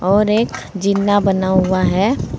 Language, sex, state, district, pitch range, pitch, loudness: Hindi, female, Uttar Pradesh, Saharanpur, 190-205 Hz, 200 Hz, -16 LUFS